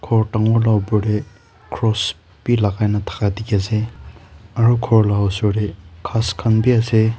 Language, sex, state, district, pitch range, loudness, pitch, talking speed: Nagamese, male, Nagaland, Kohima, 100-115 Hz, -18 LUFS, 105 Hz, 175 wpm